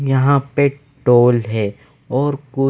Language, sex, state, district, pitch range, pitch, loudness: Hindi, male, Punjab, Fazilka, 125-140 Hz, 135 Hz, -17 LUFS